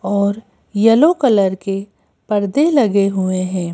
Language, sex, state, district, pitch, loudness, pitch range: Hindi, female, Madhya Pradesh, Bhopal, 200 Hz, -15 LUFS, 190-225 Hz